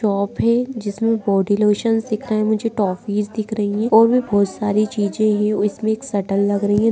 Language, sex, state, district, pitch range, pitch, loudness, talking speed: Hindi, female, Bihar, Madhepura, 205-220 Hz, 210 Hz, -19 LUFS, 215 wpm